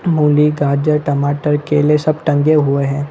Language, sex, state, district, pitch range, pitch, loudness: Hindi, male, Chhattisgarh, Bilaspur, 145-150 Hz, 150 Hz, -14 LUFS